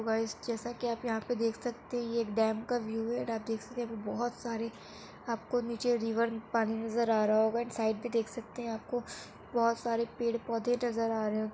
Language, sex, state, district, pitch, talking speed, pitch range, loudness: Hindi, female, Uttar Pradesh, Etah, 230 Hz, 260 wpm, 225-240 Hz, -33 LUFS